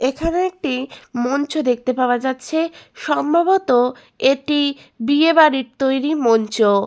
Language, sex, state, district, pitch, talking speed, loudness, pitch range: Bengali, female, West Bengal, Malda, 270 Hz, 105 wpm, -18 LUFS, 250-310 Hz